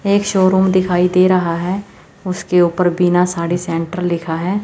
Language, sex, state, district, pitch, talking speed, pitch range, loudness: Hindi, female, Chandigarh, Chandigarh, 180 Hz, 170 wpm, 175-190 Hz, -16 LUFS